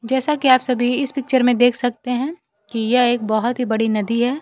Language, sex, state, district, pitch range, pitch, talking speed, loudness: Hindi, female, Bihar, Kaimur, 230-260 Hz, 245 Hz, 245 wpm, -18 LUFS